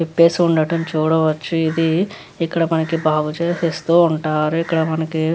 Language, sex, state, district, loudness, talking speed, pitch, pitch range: Telugu, female, Andhra Pradesh, Visakhapatnam, -18 LUFS, 145 wpm, 165 Hz, 155-165 Hz